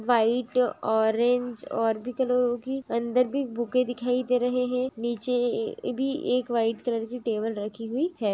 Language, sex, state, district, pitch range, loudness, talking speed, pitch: Hindi, female, Maharashtra, Nagpur, 230-255 Hz, -27 LUFS, 170 wpm, 245 Hz